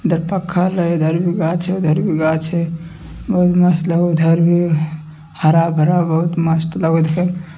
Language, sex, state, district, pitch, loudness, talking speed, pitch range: Hindi, male, Bihar, Madhepura, 165 Hz, -16 LUFS, 165 wpm, 160-175 Hz